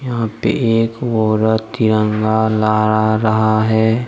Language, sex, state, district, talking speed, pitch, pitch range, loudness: Hindi, male, Jharkhand, Deoghar, 115 wpm, 110 Hz, 110-115 Hz, -15 LUFS